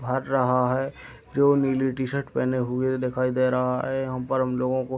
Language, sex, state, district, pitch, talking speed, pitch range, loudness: Hindi, male, Uttar Pradesh, Deoria, 130 Hz, 215 wpm, 125-135 Hz, -25 LUFS